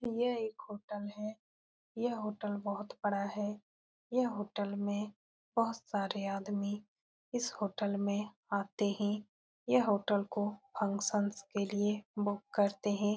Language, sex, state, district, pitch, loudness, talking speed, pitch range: Hindi, female, Bihar, Saran, 205 Hz, -36 LUFS, 130 wpm, 205-210 Hz